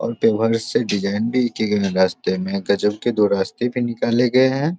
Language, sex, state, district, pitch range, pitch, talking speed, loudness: Hindi, male, Bihar, Samastipur, 100-125 Hz, 110 Hz, 215 wpm, -19 LUFS